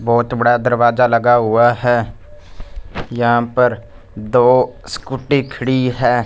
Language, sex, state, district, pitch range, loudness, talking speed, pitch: Hindi, male, Punjab, Fazilka, 115-125 Hz, -15 LUFS, 115 wpm, 120 Hz